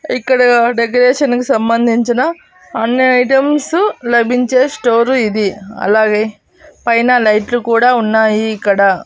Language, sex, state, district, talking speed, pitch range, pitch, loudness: Telugu, female, Andhra Pradesh, Annamaya, 100 wpm, 220-255 Hz, 240 Hz, -12 LUFS